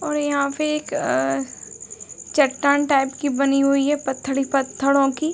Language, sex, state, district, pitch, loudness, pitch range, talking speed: Hindi, female, Uttar Pradesh, Deoria, 275 Hz, -20 LUFS, 270-290 Hz, 170 wpm